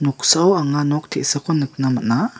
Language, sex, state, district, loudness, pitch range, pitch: Garo, male, Meghalaya, West Garo Hills, -18 LUFS, 135-155 Hz, 145 Hz